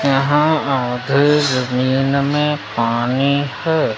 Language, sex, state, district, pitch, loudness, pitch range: Hindi, male, Madhya Pradesh, Umaria, 140 Hz, -17 LUFS, 130-145 Hz